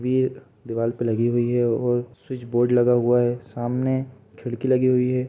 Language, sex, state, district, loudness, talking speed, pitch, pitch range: Hindi, male, Uttar Pradesh, Budaun, -22 LUFS, 180 wpm, 120 Hz, 120-125 Hz